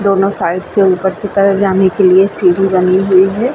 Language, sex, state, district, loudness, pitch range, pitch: Hindi, female, Bihar, Vaishali, -11 LUFS, 185-200 Hz, 195 Hz